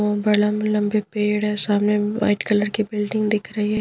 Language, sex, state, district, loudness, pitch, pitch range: Hindi, female, Bihar, Patna, -21 LUFS, 210 Hz, 210-215 Hz